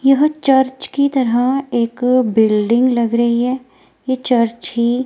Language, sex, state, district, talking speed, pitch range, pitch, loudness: Hindi, female, Himachal Pradesh, Shimla, 140 wpm, 235-265 Hz, 250 Hz, -16 LUFS